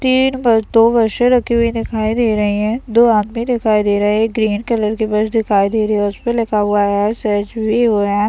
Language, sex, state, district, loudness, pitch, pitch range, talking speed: Hindi, male, Bihar, Madhepura, -15 LUFS, 220 Hz, 210-235 Hz, 230 wpm